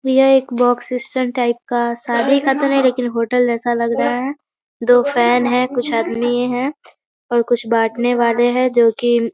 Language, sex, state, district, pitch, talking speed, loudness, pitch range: Hindi, female, Bihar, Muzaffarpur, 245 Hz, 195 wpm, -16 LUFS, 235-255 Hz